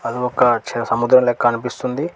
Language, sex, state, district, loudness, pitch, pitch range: Telugu, male, Telangana, Mahabubabad, -17 LUFS, 125 Hz, 120-125 Hz